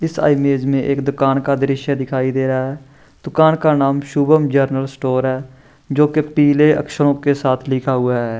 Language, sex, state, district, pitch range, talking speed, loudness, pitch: Hindi, male, Maharashtra, Chandrapur, 135-145 Hz, 195 wpm, -16 LUFS, 140 Hz